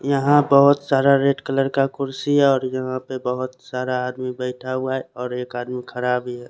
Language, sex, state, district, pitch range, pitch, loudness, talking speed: Hindi, male, Chandigarh, Chandigarh, 125-140 Hz, 130 Hz, -21 LUFS, 205 wpm